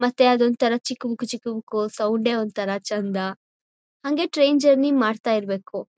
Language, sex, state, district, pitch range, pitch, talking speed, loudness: Kannada, female, Karnataka, Mysore, 210-255 Hz, 235 Hz, 160 wpm, -22 LUFS